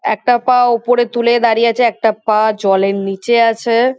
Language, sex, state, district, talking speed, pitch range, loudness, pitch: Bengali, female, West Bengal, Kolkata, 165 wpm, 215-240 Hz, -13 LUFS, 235 Hz